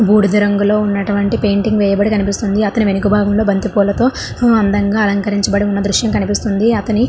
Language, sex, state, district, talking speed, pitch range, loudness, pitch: Telugu, female, Andhra Pradesh, Srikakulam, 110 wpm, 200-215 Hz, -14 LUFS, 205 Hz